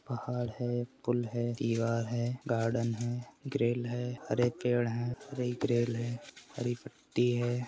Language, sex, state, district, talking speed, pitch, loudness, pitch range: Hindi, male, Uttar Pradesh, Etah, 150 wpm, 120 Hz, -33 LUFS, 120-125 Hz